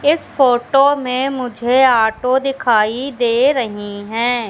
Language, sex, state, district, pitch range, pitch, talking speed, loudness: Hindi, female, Madhya Pradesh, Katni, 235-270 Hz, 250 Hz, 120 wpm, -15 LUFS